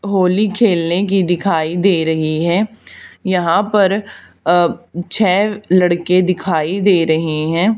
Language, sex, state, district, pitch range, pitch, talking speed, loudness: Hindi, female, Haryana, Charkhi Dadri, 170-200 Hz, 185 Hz, 130 wpm, -15 LUFS